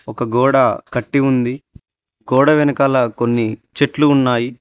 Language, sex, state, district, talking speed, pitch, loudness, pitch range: Telugu, male, Telangana, Mahabubabad, 115 wpm, 125 Hz, -16 LUFS, 115-140 Hz